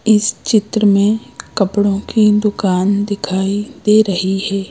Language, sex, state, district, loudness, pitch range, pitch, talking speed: Hindi, female, Madhya Pradesh, Bhopal, -15 LUFS, 195-215 Hz, 205 Hz, 125 wpm